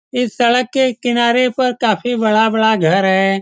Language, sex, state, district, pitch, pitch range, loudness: Hindi, male, Bihar, Saran, 235 Hz, 215-250 Hz, -14 LUFS